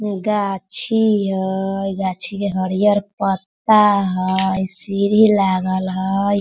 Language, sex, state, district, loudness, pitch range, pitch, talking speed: Hindi, female, Bihar, Sitamarhi, -18 LUFS, 190-205 Hz, 195 Hz, 105 wpm